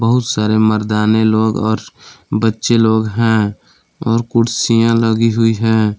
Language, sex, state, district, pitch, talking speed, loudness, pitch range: Hindi, male, Jharkhand, Palamu, 110 Hz, 130 wpm, -14 LUFS, 110-115 Hz